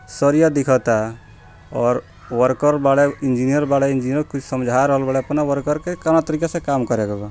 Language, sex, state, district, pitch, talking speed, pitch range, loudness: Bhojpuri, male, Bihar, Gopalganj, 135 Hz, 175 wpm, 120-145 Hz, -19 LUFS